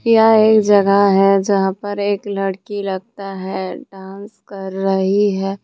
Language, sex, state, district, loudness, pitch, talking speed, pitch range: Hindi, female, Jharkhand, Deoghar, -16 LUFS, 195 Hz, 150 wpm, 195-205 Hz